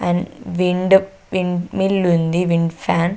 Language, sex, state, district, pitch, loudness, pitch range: Telugu, female, Andhra Pradesh, Sri Satya Sai, 180 Hz, -18 LUFS, 175-190 Hz